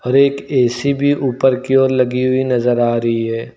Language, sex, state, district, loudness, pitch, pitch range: Hindi, male, Uttar Pradesh, Lucknow, -15 LUFS, 130 Hz, 120-135 Hz